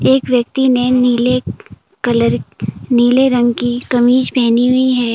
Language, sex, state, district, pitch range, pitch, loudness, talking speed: Hindi, female, Arunachal Pradesh, Papum Pare, 240-255 Hz, 245 Hz, -13 LUFS, 140 wpm